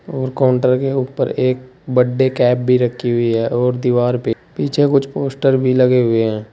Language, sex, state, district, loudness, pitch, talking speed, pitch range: Hindi, male, Uttar Pradesh, Saharanpur, -16 LUFS, 125 Hz, 195 wpm, 125-130 Hz